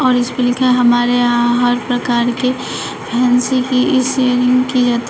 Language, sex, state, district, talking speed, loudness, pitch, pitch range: Hindi, female, Uttar Pradesh, Shamli, 190 wpm, -14 LUFS, 245 Hz, 245-255 Hz